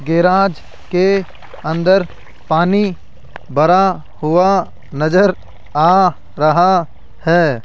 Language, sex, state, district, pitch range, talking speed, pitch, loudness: Hindi, male, Rajasthan, Jaipur, 155-190 Hz, 80 wpm, 175 Hz, -14 LUFS